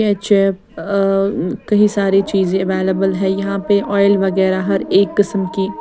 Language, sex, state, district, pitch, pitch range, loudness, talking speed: Hindi, female, Bihar, West Champaran, 195 Hz, 190-200 Hz, -16 LUFS, 165 wpm